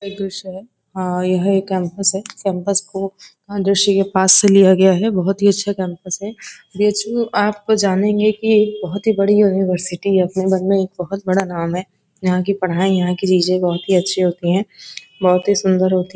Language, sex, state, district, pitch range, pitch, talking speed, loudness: Hindi, female, Uttar Pradesh, Varanasi, 185-200 Hz, 190 Hz, 180 wpm, -16 LUFS